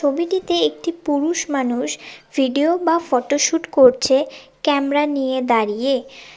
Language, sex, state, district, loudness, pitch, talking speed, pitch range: Bengali, female, West Bengal, Cooch Behar, -19 LUFS, 285 Hz, 105 wpm, 260-325 Hz